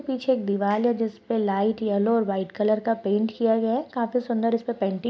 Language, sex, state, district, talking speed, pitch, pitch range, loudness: Hindi, female, Chhattisgarh, Kabirdham, 260 wpm, 225 Hz, 205-235 Hz, -24 LUFS